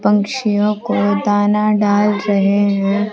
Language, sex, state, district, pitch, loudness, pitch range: Hindi, female, Bihar, Kaimur, 205 Hz, -15 LUFS, 200-210 Hz